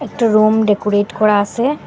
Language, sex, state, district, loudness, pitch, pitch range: Bengali, female, Assam, Hailakandi, -14 LUFS, 215 Hz, 205-230 Hz